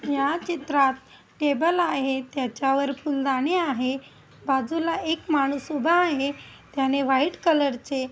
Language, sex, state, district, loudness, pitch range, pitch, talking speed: Marathi, female, Maharashtra, Aurangabad, -24 LUFS, 270-320 Hz, 280 Hz, 120 wpm